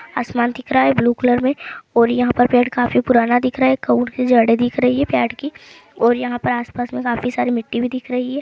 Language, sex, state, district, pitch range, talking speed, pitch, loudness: Maithili, female, Bihar, Samastipur, 240-255 Hz, 240 wpm, 245 Hz, -17 LUFS